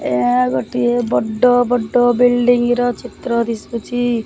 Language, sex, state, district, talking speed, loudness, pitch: Odia, male, Odisha, Khordha, 125 wpm, -16 LUFS, 235 Hz